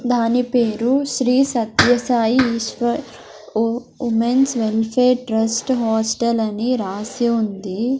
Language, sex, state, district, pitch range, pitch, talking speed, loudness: Telugu, female, Andhra Pradesh, Sri Satya Sai, 225-250 Hz, 235 Hz, 110 wpm, -19 LUFS